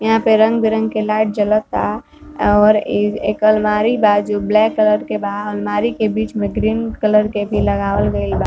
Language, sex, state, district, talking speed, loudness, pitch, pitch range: Bhojpuri, female, Uttar Pradesh, Varanasi, 205 wpm, -16 LUFS, 215 Hz, 210-220 Hz